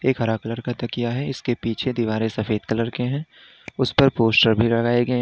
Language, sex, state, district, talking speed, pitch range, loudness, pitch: Hindi, male, Uttar Pradesh, Lalitpur, 220 wpm, 115-130 Hz, -21 LUFS, 120 Hz